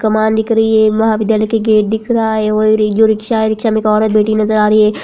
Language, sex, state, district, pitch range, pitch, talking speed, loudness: Hindi, female, Bihar, Madhepura, 215-220 Hz, 220 Hz, 275 wpm, -12 LUFS